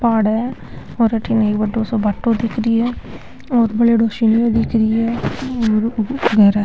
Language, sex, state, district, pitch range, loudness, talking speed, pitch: Rajasthani, female, Rajasthan, Nagaur, 220-235 Hz, -17 LUFS, 170 wpm, 225 Hz